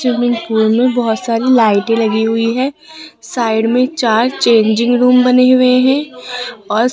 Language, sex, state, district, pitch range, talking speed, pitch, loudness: Hindi, female, Rajasthan, Jaipur, 225-255 Hz, 165 wpm, 245 Hz, -13 LUFS